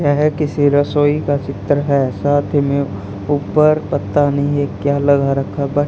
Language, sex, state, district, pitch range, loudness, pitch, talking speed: Hindi, male, Haryana, Charkhi Dadri, 140-145 Hz, -16 LUFS, 145 Hz, 185 wpm